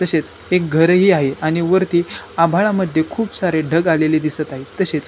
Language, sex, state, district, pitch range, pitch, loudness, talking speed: Marathi, male, Maharashtra, Chandrapur, 155-180 Hz, 165 Hz, -17 LUFS, 190 wpm